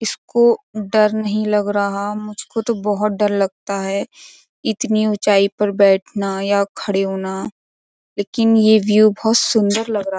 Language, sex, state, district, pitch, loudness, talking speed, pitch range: Hindi, female, Uttar Pradesh, Jyotiba Phule Nagar, 210 Hz, -17 LUFS, 155 wpm, 200-215 Hz